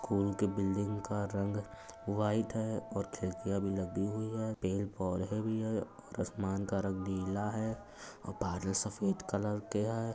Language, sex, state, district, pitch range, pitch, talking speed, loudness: Hindi, male, Uttar Pradesh, Etah, 95-110 Hz, 100 Hz, 170 wpm, -36 LUFS